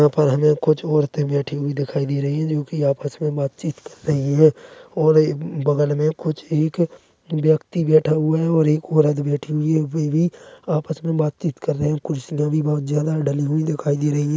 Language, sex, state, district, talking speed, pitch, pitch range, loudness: Hindi, male, Chhattisgarh, Bilaspur, 200 wpm, 155 Hz, 145-155 Hz, -20 LUFS